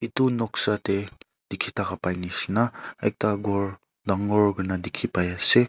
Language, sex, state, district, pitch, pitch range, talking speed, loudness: Nagamese, male, Nagaland, Kohima, 100 Hz, 95-115 Hz, 160 wpm, -25 LUFS